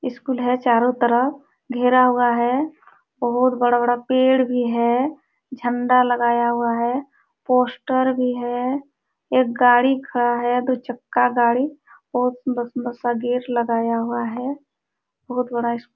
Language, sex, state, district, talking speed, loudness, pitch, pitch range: Hindi, female, Jharkhand, Sahebganj, 135 wpm, -20 LUFS, 245 Hz, 240-255 Hz